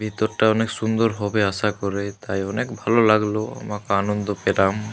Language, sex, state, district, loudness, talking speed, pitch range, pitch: Bengali, male, Jharkhand, Jamtara, -22 LUFS, 160 wpm, 100-110 Hz, 105 Hz